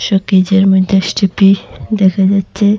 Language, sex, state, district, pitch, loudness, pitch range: Bengali, female, Assam, Hailakandi, 195 Hz, -12 LUFS, 190-200 Hz